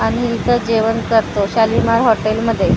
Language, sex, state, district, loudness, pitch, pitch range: Marathi, female, Maharashtra, Gondia, -15 LUFS, 225 Hz, 220-230 Hz